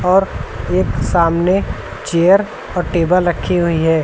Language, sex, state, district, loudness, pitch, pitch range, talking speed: Hindi, male, Uttar Pradesh, Lucknow, -16 LUFS, 170 Hz, 160-180 Hz, 135 wpm